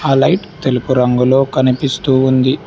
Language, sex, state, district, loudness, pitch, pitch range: Telugu, male, Telangana, Hyderabad, -14 LUFS, 130 Hz, 130-140 Hz